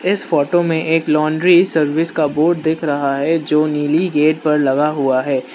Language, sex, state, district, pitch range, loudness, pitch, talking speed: Hindi, male, Manipur, Imphal West, 145-165 Hz, -16 LUFS, 155 Hz, 195 wpm